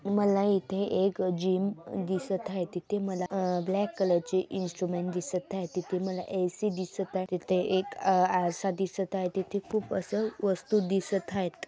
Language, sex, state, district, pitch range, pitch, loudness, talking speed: Marathi, female, Maharashtra, Dhule, 180-195 Hz, 190 Hz, -30 LUFS, 150 wpm